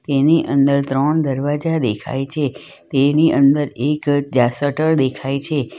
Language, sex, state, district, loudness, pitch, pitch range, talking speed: Gujarati, female, Gujarat, Valsad, -17 LUFS, 140 Hz, 135-150 Hz, 135 wpm